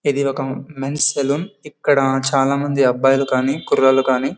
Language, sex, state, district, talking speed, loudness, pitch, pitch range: Telugu, male, Karnataka, Bellary, 165 wpm, -17 LUFS, 135 Hz, 135-145 Hz